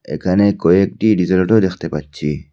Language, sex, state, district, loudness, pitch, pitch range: Bengali, male, Assam, Hailakandi, -16 LUFS, 90 Hz, 75-100 Hz